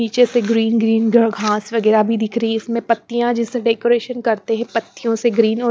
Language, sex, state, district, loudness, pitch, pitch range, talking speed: Hindi, female, Punjab, Pathankot, -17 LUFS, 230 Hz, 225-235 Hz, 210 wpm